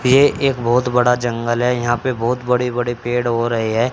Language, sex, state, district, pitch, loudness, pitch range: Hindi, male, Haryana, Charkhi Dadri, 120 Hz, -17 LUFS, 120-125 Hz